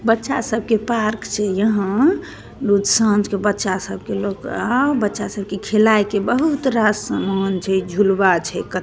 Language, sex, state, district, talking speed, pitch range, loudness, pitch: Maithili, female, Bihar, Begusarai, 150 wpm, 195-225 Hz, -19 LUFS, 210 Hz